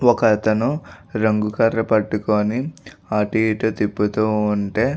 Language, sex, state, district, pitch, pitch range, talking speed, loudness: Telugu, male, Andhra Pradesh, Visakhapatnam, 110 Hz, 105-115 Hz, 110 wpm, -20 LUFS